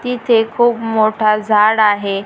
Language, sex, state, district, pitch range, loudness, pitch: Marathi, female, Maharashtra, Gondia, 215-230 Hz, -14 LUFS, 220 Hz